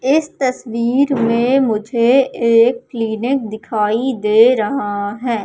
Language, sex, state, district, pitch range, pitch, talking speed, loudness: Hindi, female, Madhya Pradesh, Katni, 220-260 Hz, 235 Hz, 110 wpm, -16 LUFS